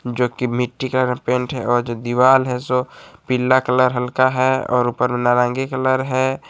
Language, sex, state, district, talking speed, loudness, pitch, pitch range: Hindi, male, Jharkhand, Palamu, 185 wpm, -18 LUFS, 125 Hz, 125-130 Hz